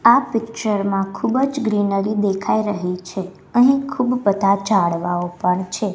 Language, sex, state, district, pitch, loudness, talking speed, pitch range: Gujarati, female, Gujarat, Gandhinagar, 200 Hz, -19 LUFS, 150 wpm, 185-230 Hz